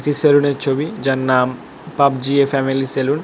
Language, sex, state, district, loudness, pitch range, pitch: Bengali, male, West Bengal, North 24 Parganas, -17 LUFS, 135-145 Hz, 140 Hz